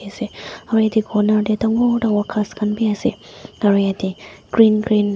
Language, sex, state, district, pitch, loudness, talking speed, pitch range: Nagamese, female, Nagaland, Dimapur, 215 Hz, -18 LUFS, 175 wpm, 205-225 Hz